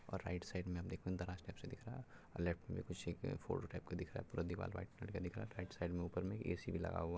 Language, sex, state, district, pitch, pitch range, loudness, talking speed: Hindi, male, Bihar, Purnia, 90 Hz, 85-100 Hz, -46 LUFS, 345 wpm